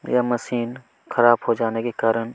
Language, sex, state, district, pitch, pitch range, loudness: Hindi, male, Chhattisgarh, Kabirdham, 120 Hz, 115-120 Hz, -21 LUFS